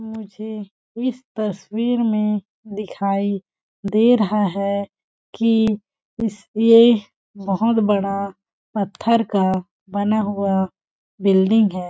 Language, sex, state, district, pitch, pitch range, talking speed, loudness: Hindi, female, Chhattisgarh, Balrampur, 210 Hz, 200-225 Hz, 95 wpm, -20 LUFS